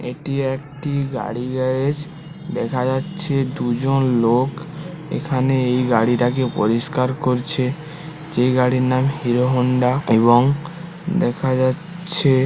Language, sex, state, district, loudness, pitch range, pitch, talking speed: Bengali, male, West Bengal, Paschim Medinipur, -19 LUFS, 125-155 Hz, 130 Hz, 100 wpm